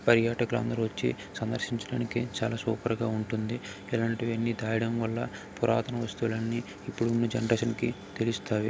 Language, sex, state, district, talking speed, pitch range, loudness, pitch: Telugu, male, Andhra Pradesh, Guntur, 140 wpm, 110-115 Hz, -30 LUFS, 115 Hz